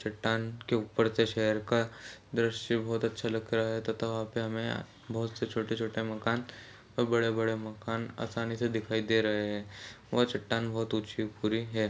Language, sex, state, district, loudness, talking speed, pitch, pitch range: Hindi, male, Chhattisgarh, Raigarh, -32 LUFS, 185 wpm, 115 Hz, 110-115 Hz